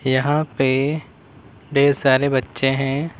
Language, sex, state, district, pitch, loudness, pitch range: Hindi, male, Uttar Pradesh, Saharanpur, 135 Hz, -19 LUFS, 130-140 Hz